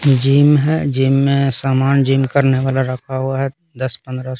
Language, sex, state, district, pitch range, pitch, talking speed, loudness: Hindi, male, Bihar, Patna, 130-140 Hz, 135 Hz, 175 wpm, -16 LUFS